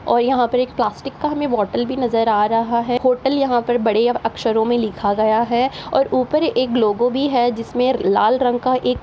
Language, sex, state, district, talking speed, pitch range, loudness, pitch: Hindi, female, Uttar Pradesh, Ghazipur, 225 wpm, 230-255 Hz, -18 LUFS, 245 Hz